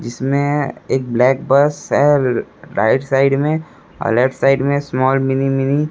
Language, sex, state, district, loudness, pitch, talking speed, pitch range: Hindi, male, Chhattisgarh, Raipur, -16 LUFS, 135 Hz, 160 wpm, 130-145 Hz